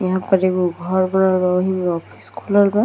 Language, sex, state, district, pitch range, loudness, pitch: Bhojpuri, female, Bihar, Gopalganj, 180-190 Hz, -18 LUFS, 185 Hz